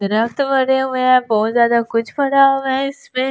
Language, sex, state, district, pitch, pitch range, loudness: Hindi, female, Delhi, New Delhi, 255 Hz, 235-270 Hz, -16 LUFS